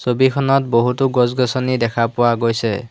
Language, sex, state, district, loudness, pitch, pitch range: Assamese, male, Assam, Hailakandi, -17 LUFS, 125 Hz, 115-130 Hz